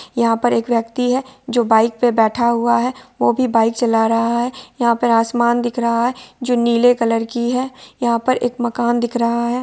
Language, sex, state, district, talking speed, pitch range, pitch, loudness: Hindi, female, Bihar, Sitamarhi, 225 wpm, 235-245 Hz, 240 Hz, -17 LUFS